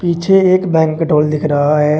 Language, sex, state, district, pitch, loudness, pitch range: Hindi, male, Uttar Pradesh, Shamli, 160 Hz, -13 LUFS, 150-175 Hz